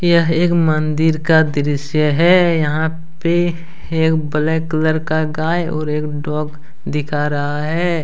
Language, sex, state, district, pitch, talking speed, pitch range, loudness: Hindi, male, Jharkhand, Deoghar, 160 Hz, 140 wpm, 150-165 Hz, -17 LUFS